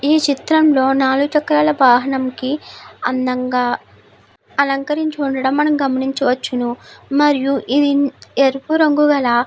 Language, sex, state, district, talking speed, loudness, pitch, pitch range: Telugu, female, Andhra Pradesh, Chittoor, 120 wpm, -16 LUFS, 275 Hz, 260-295 Hz